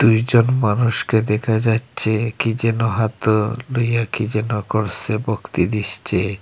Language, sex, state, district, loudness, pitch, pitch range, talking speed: Bengali, male, Assam, Hailakandi, -19 LUFS, 110 Hz, 105-115 Hz, 130 wpm